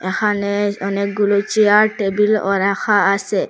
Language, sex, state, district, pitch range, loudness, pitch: Bengali, female, Assam, Hailakandi, 200-210 Hz, -16 LUFS, 205 Hz